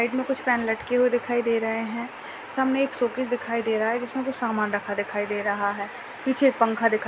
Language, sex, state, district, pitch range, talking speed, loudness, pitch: Hindi, female, Maharashtra, Chandrapur, 220-250 Hz, 255 wpm, -25 LUFS, 235 Hz